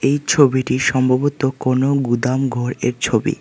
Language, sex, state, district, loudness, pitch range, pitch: Bengali, male, West Bengal, Alipurduar, -17 LUFS, 125-140 Hz, 130 Hz